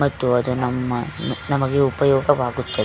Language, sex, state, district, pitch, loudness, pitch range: Kannada, female, Karnataka, Belgaum, 125 Hz, -20 LUFS, 125-140 Hz